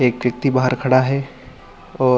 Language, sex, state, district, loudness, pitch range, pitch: Hindi, male, Chhattisgarh, Bilaspur, -18 LUFS, 125-130 Hz, 130 Hz